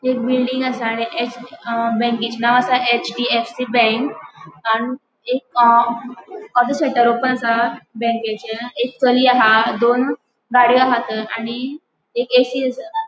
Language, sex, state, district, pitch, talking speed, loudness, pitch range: Konkani, female, Goa, North and South Goa, 240 Hz, 120 wpm, -17 LUFS, 235-255 Hz